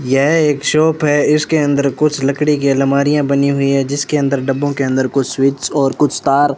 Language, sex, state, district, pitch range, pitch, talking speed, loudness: Hindi, male, Rajasthan, Bikaner, 135-150 Hz, 140 Hz, 220 wpm, -14 LUFS